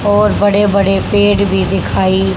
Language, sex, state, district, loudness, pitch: Hindi, female, Haryana, Charkhi Dadri, -12 LUFS, 200 Hz